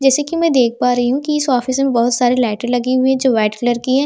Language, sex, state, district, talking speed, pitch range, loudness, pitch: Hindi, female, Delhi, New Delhi, 325 wpm, 245-270 Hz, -15 LUFS, 255 Hz